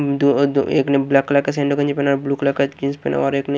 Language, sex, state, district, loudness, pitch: Hindi, male, Haryana, Jhajjar, -18 LUFS, 140 Hz